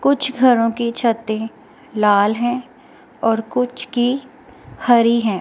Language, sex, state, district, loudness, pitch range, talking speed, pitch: Hindi, female, Himachal Pradesh, Shimla, -18 LUFS, 225-255 Hz, 120 wpm, 240 Hz